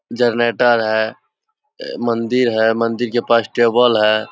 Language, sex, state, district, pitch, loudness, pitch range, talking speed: Hindi, male, Bihar, Supaul, 120 Hz, -16 LUFS, 115-125 Hz, 155 wpm